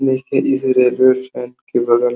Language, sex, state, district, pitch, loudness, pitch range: Hindi, male, Uttar Pradesh, Hamirpur, 130 Hz, -15 LUFS, 125-130 Hz